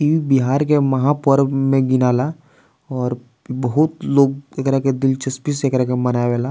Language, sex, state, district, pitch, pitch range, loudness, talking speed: Bhojpuri, male, Bihar, East Champaran, 135 Hz, 125-140 Hz, -18 LUFS, 155 wpm